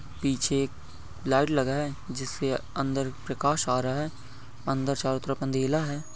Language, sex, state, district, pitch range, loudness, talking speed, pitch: Hindi, male, Goa, North and South Goa, 130-140 Hz, -28 LUFS, 155 wpm, 135 Hz